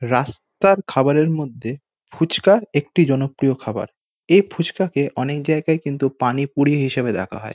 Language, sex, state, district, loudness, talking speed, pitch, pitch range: Bengali, male, West Bengal, North 24 Parganas, -19 LUFS, 135 wpm, 140 Hz, 130-160 Hz